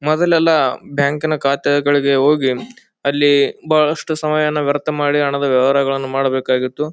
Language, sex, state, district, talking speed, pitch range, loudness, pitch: Kannada, male, Karnataka, Bijapur, 105 wpm, 140-155 Hz, -16 LUFS, 145 Hz